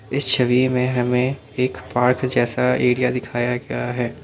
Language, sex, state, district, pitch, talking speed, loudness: Hindi, male, Assam, Kamrup Metropolitan, 125 Hz, 155 wpm, -19 LUFS